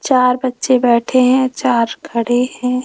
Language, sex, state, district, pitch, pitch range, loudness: Hindi, female, Rajasthan, Jaipur, 250 Hz, 245-255 Hz, -15 LUFS